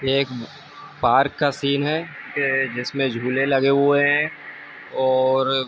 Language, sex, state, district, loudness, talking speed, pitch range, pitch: Hindi, male, Uttar Pradesh, Ghazipur, -20 LUFS, 150 wpm, 130-145 Hz, 135 Hz